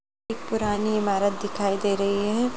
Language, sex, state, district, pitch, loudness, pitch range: Hindi, female, Bihar, Jamui, 205 Hz, -25 LUFS, 200-215 Hz